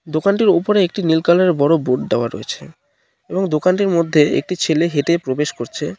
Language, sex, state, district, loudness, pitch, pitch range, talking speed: Bengali, male, West Bengal, Cooch Behar, -17 LUFS, 165 Hz, 150-185 Hz, 180 wpm